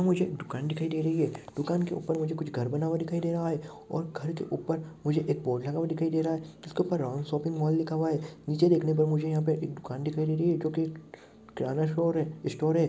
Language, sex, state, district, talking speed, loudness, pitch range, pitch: Hindi, male, Rajasthan, Churu, 270 wpm, -30 LUFS, 155-165 Hz, 160 Hz